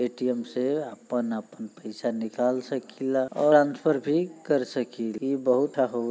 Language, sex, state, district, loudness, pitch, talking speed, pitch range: Bhojpuri, male, Uttar Pradesh, Gorakhpur, -26 LUFS, 130 Hz, 145 wpm, 120-145 Hz